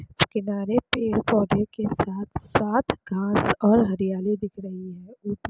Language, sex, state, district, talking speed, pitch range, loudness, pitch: Hindi, female, Chhattisgarh, Sukma, 140 wpm, 195-220 Hz, -24 LUFS, 205 Hz